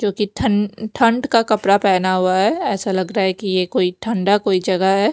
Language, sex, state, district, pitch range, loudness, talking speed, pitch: Hindi, female, Maharashtra, Mumbai Suburban, 185-210 Hz, -17 LUFS, 235 wpm, 200 Hz